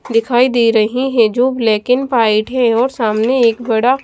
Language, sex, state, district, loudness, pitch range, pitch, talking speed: Hindi, female, Chhattisgarh, Raipur, -14 LUFS, 225-255 Hz, 235 Hz, 180 wpm